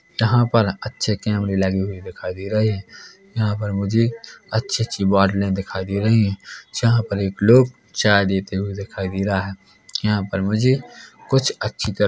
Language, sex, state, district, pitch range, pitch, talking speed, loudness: Hindi, male, Chhattisgarh, Korba, 95-110 Hz, 100 Hz, 185 wpm, -20 LUFS